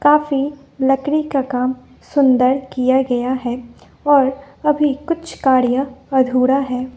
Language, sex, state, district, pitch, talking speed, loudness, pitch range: Hindi, female, Bihar, West Champaran, 265 Hz, 120 wpm, -17 LUFS, 255-280 Hz